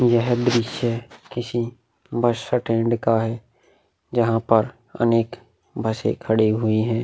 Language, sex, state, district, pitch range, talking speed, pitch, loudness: Hindi, male, Bihar, Vaishali, 115-120 Hz, 120 wpm, 115 Hz, -22 LUFS